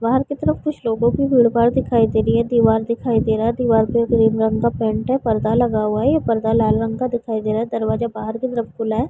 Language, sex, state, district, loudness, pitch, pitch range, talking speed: Hindi, female, Bihar, Vaishali, -18 LUFS, 230 Hz, 220-240 Hz, 275 wpm